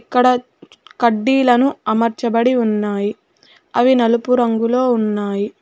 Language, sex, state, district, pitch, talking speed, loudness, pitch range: Telugu, female, Telangana, Hyderabad, 235 Hz, 85 wpm, -16 LUFS, 215-250 Hz